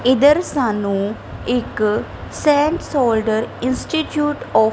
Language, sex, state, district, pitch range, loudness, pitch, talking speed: Punjabi, female, Punjab, Kapurthala, 220-295 Hz, -18 LUFS, 255 Hz, 100 wpm